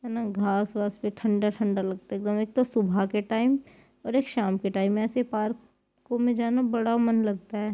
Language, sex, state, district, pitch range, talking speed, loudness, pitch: Hindi, female, Bihar, Jahanabad, 205-235 Hz, 210 wpm, -27 LUFS, 215 Hz